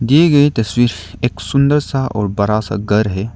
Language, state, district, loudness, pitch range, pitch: Hindi, Arunachal Pradesh, Lower Dibang Valley, -15 LUFS, 105-140 Hz, 115 Hz